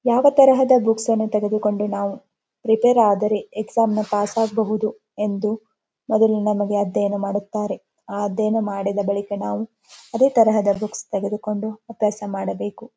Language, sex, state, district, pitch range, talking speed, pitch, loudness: Kannada, female, Karnataka, Dharwad, 205-225 Hz, 125 wpm, 215 Hz, -20 LUFS